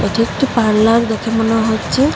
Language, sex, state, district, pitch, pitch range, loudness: Bengali, female, Assam, Hailakandi, 225 Hz, 220-235 Hz, -15 LUFS